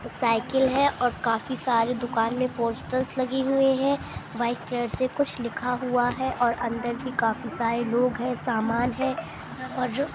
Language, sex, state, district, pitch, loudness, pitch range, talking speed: Hindi, female, Andhra Pradesh, Chittoor, 245 Hz, -26 LUFS, 235-260 Hz, 165 wpm